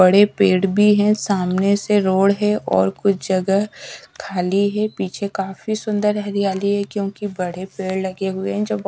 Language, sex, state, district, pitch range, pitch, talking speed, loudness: Hindi, female, Odisha, Sambalpur, 190-205 Hz, 195 Hz, 175 wpm, -19 LUFS